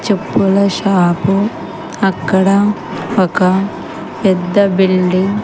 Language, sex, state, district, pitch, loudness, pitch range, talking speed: Telugu, female, Andhra Pradesh, Sri Satya Sai, 195 Hz, -14 LUFS, 185-200 Hz, 75 wpm